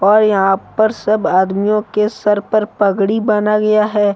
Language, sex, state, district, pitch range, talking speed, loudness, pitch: Hindi, male, Jharkhand, Deoghar, 200-215 Hz, 175 wpm, -14 LUFS, 210 Hz